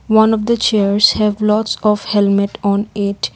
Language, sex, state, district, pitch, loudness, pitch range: English, female, Assam, Kamrup Metropolitan, 210 Hz, -15 LUFS, 200-220 Hz